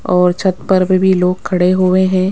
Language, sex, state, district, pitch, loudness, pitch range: Hindi, female, Rajasthan, Jaipur, 185 Hz, -13 LUFS, 180-185 Hz